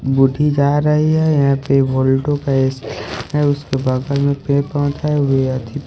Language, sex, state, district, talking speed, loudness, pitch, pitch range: Hindi, male, Haryana, Rohtak, 175 wpm, -16 LUFS, 140 Hz, 135-145 Hz